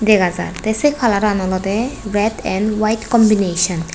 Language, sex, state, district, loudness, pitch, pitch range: Chakma, female, Tripura, West Tripura, -17 LUFS, 210 Hz, 190-220 Hz